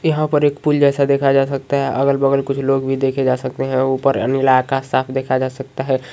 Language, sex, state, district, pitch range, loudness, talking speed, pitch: Magahi, male, Bihar, Gaya, 130-140 Hz, -17 LUFS, 245 wpm, 135 Hz